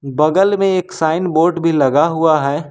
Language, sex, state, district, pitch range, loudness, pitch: Hindi, male, Jharkhand, Ranchi, 155-180 Hz, -14 LUFS, 160 Hz